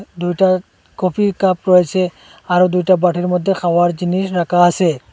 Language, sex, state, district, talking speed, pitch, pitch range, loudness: Bengali, male, Assam, Hailakandi, 140 wpm, 180 Hz, 175-185 Hz, -15 LUFS